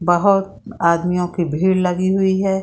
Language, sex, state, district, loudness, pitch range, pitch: Hindi, female, Bihar, Saran, -18 LUFS, 175-195 Hz, 185 Hz